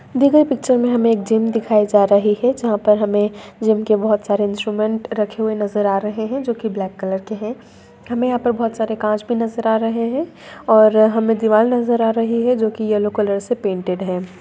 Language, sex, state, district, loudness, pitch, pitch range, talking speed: Hindi, female, Bihar, Saharsa, -17 LUFS, 220 Hz, 210-230 Hz, 225 wpm